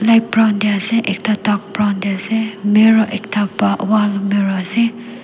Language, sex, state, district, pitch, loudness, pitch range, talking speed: Nagamese, female, Nagaland, Dimapur, 210 Hz, -16 LUFS, 200-220 Hz, 160 wpm